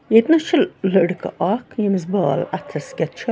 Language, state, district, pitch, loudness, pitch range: Kashmiri, Punjab, Kapurthala, 195 Hz, -19 LUFS, 185-230 Hz